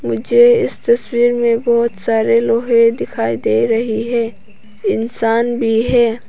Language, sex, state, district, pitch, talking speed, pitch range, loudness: Hindi, female, Arunachal Pradesh, Papum Pare, 230 Hz, 135 wpm, 225-235 Hz, -15 LUFS